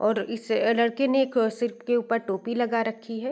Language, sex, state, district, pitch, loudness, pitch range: Hindi, female, Bihar, Gopalganj, 230 Hz, -25 LUFS, 225-240 Hz